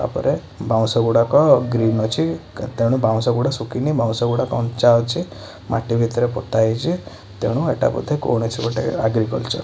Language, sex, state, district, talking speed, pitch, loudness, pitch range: Odia, male, Odisha, Khordha, 155 wpm, 115 Hz, -19 LUFS, 110-120 Hz